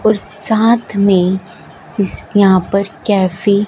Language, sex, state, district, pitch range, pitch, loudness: Hindi, female, Punjab, Fazilka, 190-210 Hz, 200 Hz, -14 LUFS